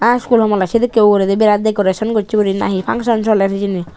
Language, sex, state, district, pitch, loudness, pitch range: Chakma, female, Tripura, Unakoti, 210 Hz, -14 LUFS, 195-225 Hz